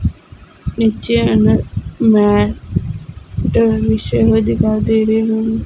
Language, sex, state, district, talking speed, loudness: Punjabi, female, Punjab, Fazilka, 105 wpm, -15 LUFS